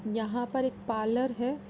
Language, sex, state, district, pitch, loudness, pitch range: Hindi, female, Uttar Pradesh, Budaun, 245 Hz, -31 LUFS, 225-260 Hz